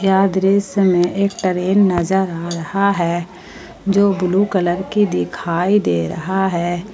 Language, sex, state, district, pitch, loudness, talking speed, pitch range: Hindi, female, Jharkhand, Palamu, 185 Hz, -17 LUFS, 145 wpm, 175-195 Hz